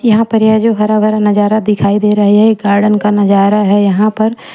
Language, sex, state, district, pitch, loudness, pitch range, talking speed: Hindi, female, Chhattisgarh, Raipur, 210 Hz, -10 LUFS, 205-220 Hz, 250 wpm